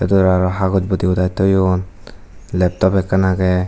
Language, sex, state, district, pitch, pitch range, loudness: Chakma, male, Tripura, Dhalai, 95 Hz, 90-95 Hz, -16 LUFS